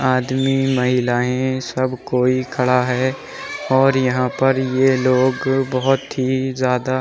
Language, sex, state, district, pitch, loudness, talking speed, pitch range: Hindi, male, Uttar Pradesh, Muzaffarnagar, 130 Hz, -18 LUFS, 130 wpm, 125-135 Hz